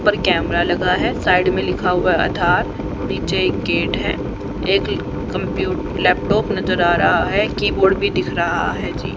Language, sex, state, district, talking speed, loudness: Hindi, female, Haryana, Rohtak, 175 wpm, -18 LUFS